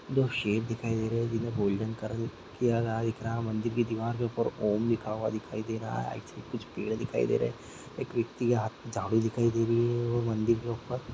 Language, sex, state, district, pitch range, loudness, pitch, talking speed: Hindi, male, Bihar, Gaya, 110-120 Hz, -31 LUFS, 115 Hz, 240 wpm